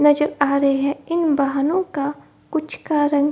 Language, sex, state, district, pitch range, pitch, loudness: Hindi, female, Bihar, Gopalganj, 280-305 Hz, 295 Hz, -20 LUFS